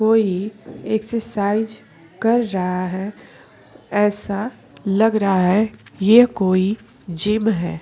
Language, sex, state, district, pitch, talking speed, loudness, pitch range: Hindi, female, Chhattisgarh, Korba, 205 Hz, 90 wpm, -19 LUFS, 185-220 Hz